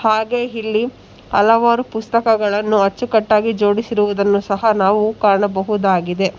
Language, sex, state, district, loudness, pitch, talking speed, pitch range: Kannada, female, Karnataka, Bangalore, -16 LUFS, 215 Hz, 75 wpm, 200-225 Hz